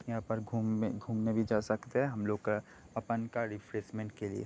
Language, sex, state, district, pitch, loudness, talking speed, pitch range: Hindi, male, Bihar, Kishanganj, 110 Hz, -35 LUFS, 200 wpm, 105-115 Hz